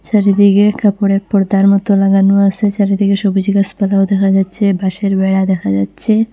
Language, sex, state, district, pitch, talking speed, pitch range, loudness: Bengali, female, Assam, Hailakandi, 200 Hz, 140 wpm, 195-200 Hz, -12 LUFS